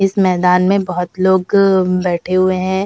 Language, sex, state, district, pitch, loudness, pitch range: Hindi, female, Uttar Pradesh, Jalaun, 185 Hz, -14 LUFS, 180-190 Hz